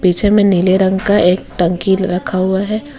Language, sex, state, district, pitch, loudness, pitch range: Hindi, female, Jharkhand, Ranchi, 190 Hz, -13 LUFS, 180-205 Hz